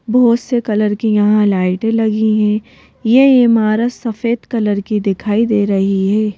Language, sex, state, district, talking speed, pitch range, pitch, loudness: Hindi, female, Madhya Pradesh, Bhopal, 160 wpm, 210-230 Hz, 215 Hz, -14 LUFS